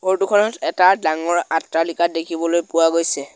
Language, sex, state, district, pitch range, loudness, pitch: Assamese, male, Assam, Sonitpur, 165-185 Hz, -18 LUFS, 170 Hz